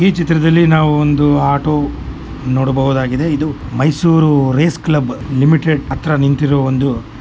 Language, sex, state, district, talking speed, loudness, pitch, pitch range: Kannada, male, Karnataka, Mysore, 125 wpm, -14 LUFS, 145 Hz, 135-155 Hz